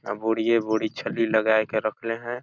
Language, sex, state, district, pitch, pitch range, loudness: Awadhi, male, Chhattisgarh, Balrampur, 110 Hz, 110-115 Hz, -24 LUFS